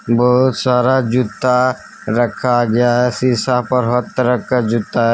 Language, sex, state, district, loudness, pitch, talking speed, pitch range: Hindi, male, Jharkhand, Deoghar, -15 LUFS, 125 Hz, 150 wpm, 120-125 Hz